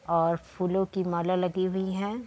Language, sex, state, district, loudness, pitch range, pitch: Hindi, female, Uttar Pradesh, Muzaffarnagar, -28 LUFS, 175-190 Hz, 185 Hz